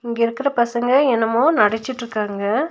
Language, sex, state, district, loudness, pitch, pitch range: Tamil, female, Tamil Nadu, Nilgiris, -19 LUFS, 235 Hz, 220-255 Hz